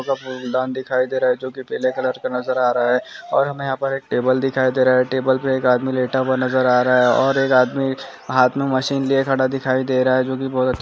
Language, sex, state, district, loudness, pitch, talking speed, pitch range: Hindi, male, Andhra Pradesh, Chittoor, -19 LUFS, 130 Hz, 255 wpm, 130-135 Hz